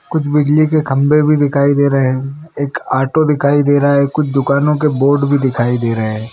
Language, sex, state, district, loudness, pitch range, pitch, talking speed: Hindi, male, Chhattisgarh, Bilaspur, -13 LUFS, 135-150 Hz, 140 Hz, 225 wpm